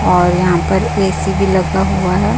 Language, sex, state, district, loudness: Hindi, female, Chhattisgarh, Raipur, -14 LUFS